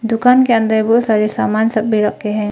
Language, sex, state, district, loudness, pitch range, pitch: Hindi, female, Arunachal Pradesh, Papum Pare, -14 LUFS, 215-230 Hz, 220 Hz